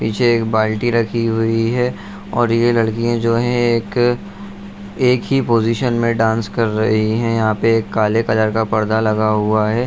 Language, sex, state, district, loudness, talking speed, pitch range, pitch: Hindi, male, Bihar, Saharsa, -17 LUFS, 180 wpm, 110-120 Hz, 115 Hz